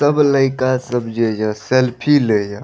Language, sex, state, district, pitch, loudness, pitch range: Maithili, male, Bihar, Madhepura, 125 Hz, -16 LUFS, 110-135 Hz